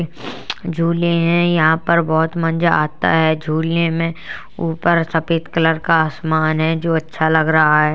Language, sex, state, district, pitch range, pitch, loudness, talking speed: Hindi, female, Uttar Pradesh, Jalaun, 160-170 Hz, 165 Hz, -17 LUFS, 160 wpm